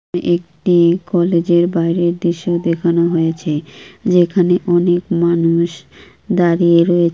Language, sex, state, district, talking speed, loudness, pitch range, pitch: Bengali, female, West Bengal, Kolkata, 90 wpm, -15 LUFS, 170-175 Hz, 170 Hz